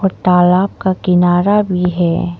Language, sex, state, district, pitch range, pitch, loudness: Hindi, female, Arunachal Pradesh, Papum Pare, 175-190 Hz, 180 Hz, -13 LUFS